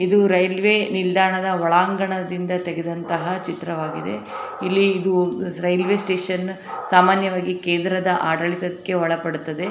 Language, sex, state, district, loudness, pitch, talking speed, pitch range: Kannada, female, Karnataka, Dharwad, -21 LUFS, 180 Hz, 85 wpm, 175-190 Hz